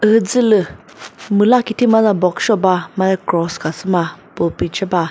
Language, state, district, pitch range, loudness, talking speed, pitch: Chakhesang, Nagaland, Dimapur, 175-220 Hz, -16 LUFS, 165 wpm, 190 Hz